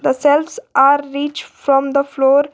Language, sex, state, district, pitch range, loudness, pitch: English, female, Jharkhand, Garhwa, 275-295 Hz, -15 LUFS, 285 Hz